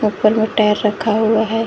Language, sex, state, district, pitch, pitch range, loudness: Hindi, female, Jharkhand, Garhwa, 220 Hz, 215-220 Hz, -16 LUFS